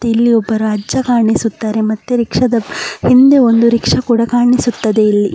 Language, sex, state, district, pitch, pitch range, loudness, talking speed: Kannada, male, Karnataka, Mysore, 230 Hz, 220-245 Hz, -12 LUFS, 145 wpm